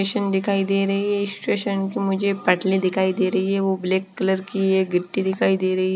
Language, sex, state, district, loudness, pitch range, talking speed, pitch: Hindi, female, Himachal Pradesh, Shimla, -21 LUFS, 190-195 Hz, 210 wpm, 190 Hz